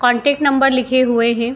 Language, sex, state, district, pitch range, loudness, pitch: Hindi, female, Uttar Pradesh, Jyotiba Phule Nagar, 240-270 Hz, -15 LUFS, 255 Hz